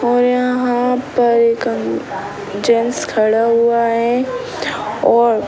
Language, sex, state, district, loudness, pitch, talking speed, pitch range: Hindi, male, Bihar, Sitamarhi, -16 LUFS, 235 Hz, 120 wpm, 230-245 Hz